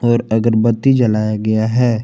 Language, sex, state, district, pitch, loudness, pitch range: Hindi, male, Jharkhand, Palamu, 115 Hz, -15 LUFS, 110-120 Hz